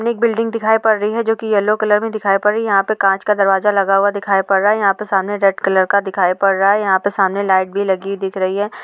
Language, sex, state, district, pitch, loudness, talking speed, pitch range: Hindi, female, Bihar, Saharsa, 200 Hz, -15 LUFS, 305 wpm, 195-210 Hz